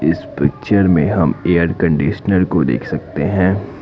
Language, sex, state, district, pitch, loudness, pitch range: Hindi, male, Assam, Kamrup Metropolitan, 90 Hz, -16 LUFS, 80-100 Hz